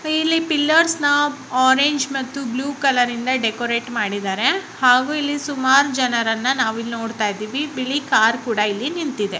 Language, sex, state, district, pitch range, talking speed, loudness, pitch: Kannada, female, Karnataka, Raichur, 230-290 Hz, 130 wpm, -19 LUFS, 260 Hz